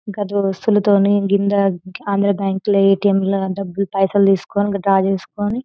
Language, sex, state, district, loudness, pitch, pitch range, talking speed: Telugu, female, Telangana, Nalgonda, -17 LUFS, 200 Hz, 195-205 Hz, 150 wpm